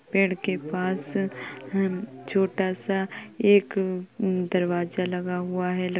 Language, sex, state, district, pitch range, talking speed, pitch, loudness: Hindi, female, Uttar Pradesh, Jalaun, 180-195 Hz, 140 wpm, 185 Hz, -25 LUFS